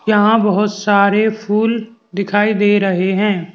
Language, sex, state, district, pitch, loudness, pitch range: Hindi, male, Madhya Pradesh, Bhopal, 205 Hz, -15 LUFS, 200-220 Hz